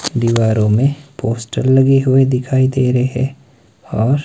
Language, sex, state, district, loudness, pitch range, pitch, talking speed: Hindi, male, Himachal Pradesh, Shimla, -15 LUFS, 115-135 Hz, 130 Hz, 125 wpm